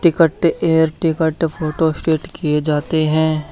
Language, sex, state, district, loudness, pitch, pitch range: Hindi, male, Haryana, Charkhi Dadri, -17 LUFS, 160 Hz, 155-165 Hz